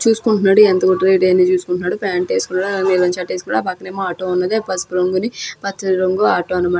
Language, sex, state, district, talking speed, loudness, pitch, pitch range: Telugu, female, Andhra Pradesh, Krishna, 185 wpm, -16 LUFS, 185 Hz, 180-195 Hz